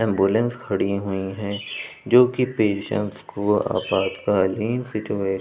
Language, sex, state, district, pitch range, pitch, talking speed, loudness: Hindi, male, Uttar Pradesh, Budaun, 100-115 Hz, 100 Hz, 110 wpm, -22 LUFS